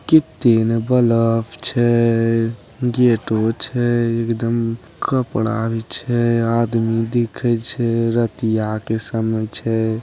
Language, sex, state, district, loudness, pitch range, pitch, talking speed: Angika, male, Bihar, Begusarai, -18 LUFS, 115-120 Hz, 115 Hz, 95 wpm